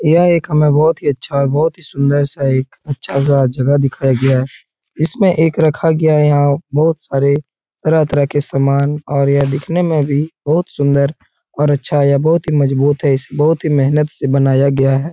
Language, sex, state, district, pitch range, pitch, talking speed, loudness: Hindi, male, Uttar Pradesh, Etah, 140-155 Hz, 145 Hz, 190 wpm, -14 LUFS